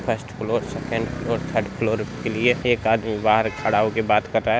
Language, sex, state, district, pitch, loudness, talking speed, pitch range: Hindi, male, Bihar, Muzaffarpur, 110 Hz, -22 LUFS, 220 wpm, 110-115 Hz